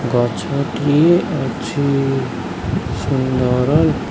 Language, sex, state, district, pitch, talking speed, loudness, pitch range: Odia, male, Odisha, Khordha, 135 Hz, 60 wpm, -17 LUFS, 120-145 Hz